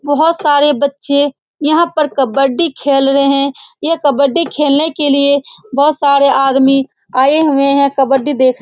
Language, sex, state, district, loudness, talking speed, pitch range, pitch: Hindi, female, Bihar, Saran, -12 LUFS, 160 wpm, 275-295 Hz, 280 Hz